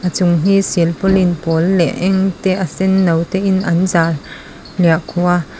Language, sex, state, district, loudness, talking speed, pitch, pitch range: Mizo, female, Mizoram, Aizawl, -15 LUFS, 160 wpm, 180 Hz, 170-190 Hz